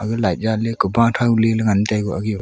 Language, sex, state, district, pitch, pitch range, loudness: Wancho, female, Arunachal Pradesh, Longding, 110 Hz, 105-115 Hz, -18 LUFS